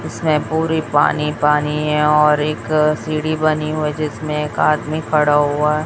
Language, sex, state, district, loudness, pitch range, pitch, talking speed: Hindi, female, Chhattisgarh, Raipur, -17 LUFS, 150-155 Hz, 150 Hz, 165 wpm